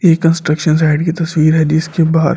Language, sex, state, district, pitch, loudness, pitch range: Hindi, male, Delhi, New Delhi, 160 Hz, -13 LUFS, 155-165 Hz